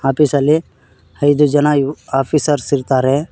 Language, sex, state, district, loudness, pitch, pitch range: Kannada, male, Karnataka, Koppal, -15 LUFS, 140 Hz, 135-150 Hz